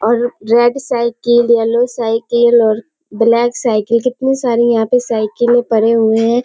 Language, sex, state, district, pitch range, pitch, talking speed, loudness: Hindi, female, Bihar, Kishanganj, 225-240 Hz, 235 Hz, 160 wpm, -13 LUFS